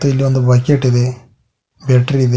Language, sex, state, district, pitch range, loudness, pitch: Kannada, male, Karnataka, Koppal, 125-135 Hz, -14 LUFS, 125 Hz